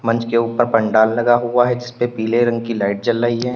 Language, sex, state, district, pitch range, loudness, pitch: Hindi, male, Uttar Pradesh, Lalitpur, 115-120 Hz, -17 LUFS, 120 Hz